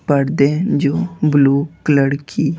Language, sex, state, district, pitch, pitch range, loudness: Hindi, male, Bihar, Patna, 140 Hz, 140-150 Hz, -16 LUFS